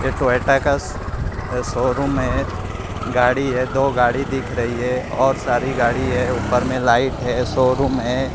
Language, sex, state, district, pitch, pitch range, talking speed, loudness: Hindi, male, Maharashtra, Mumbai Suburban, 125 Hz, 120-130 Hz, 160 wpm, -19 LUFS